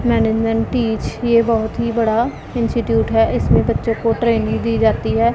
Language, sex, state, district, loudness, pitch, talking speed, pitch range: Hindi, female, Punjab, Pathankot, -17 LUFS, 230 Hz, 170 wpm, 225-235 Hz